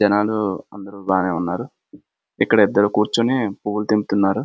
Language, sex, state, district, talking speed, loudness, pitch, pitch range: Telugu, male, Andhra Pradesh, Srikakulam, 120 wpm, -20 LUFS, 100 Hz, 95-105 Hz